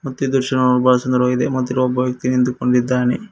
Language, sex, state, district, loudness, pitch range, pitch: Kannada, male, Karnataka, Koppal, -17 LUFS, 125-130 Hz, 125 Hz